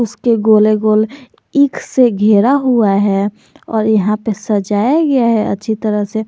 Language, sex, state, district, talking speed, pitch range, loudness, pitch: Hindi, male, Jharkhand, Garhwa, 160 wpm, 210-240 Hz, -13 LUFS, 220 Hz